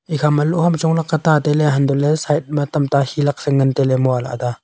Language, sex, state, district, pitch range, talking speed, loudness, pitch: Wancho, male, Arunachal Pradesh, Longding, 140-155 Hz, 285 wpm, -17 LUFS, 150 Hz